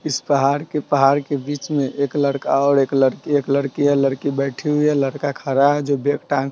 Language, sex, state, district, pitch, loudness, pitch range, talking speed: Hindi, male, Bihar, Sitamarhi, 140 Hz, -19 LUFS, 140-145 Hz, 240 wpm